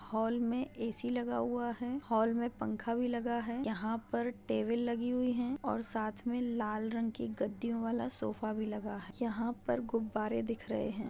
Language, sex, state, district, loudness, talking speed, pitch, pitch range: Hindi, female, Maharashtra, Dhule, -36 LUFS, 200 wpm, 235 Hz, 220-245 Hz